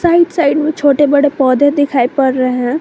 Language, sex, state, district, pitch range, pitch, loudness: Hindi, female, Jharkhand, Garhwa, 260-295 Hz, 285 Hz, -12 LUFS